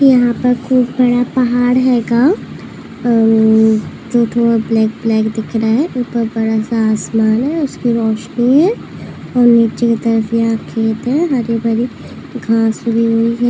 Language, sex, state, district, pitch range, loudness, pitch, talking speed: Hindi, female, Maharashtra, Pune, 225-245 Hz, -14 LUFS, 235 Hz, 140 wpm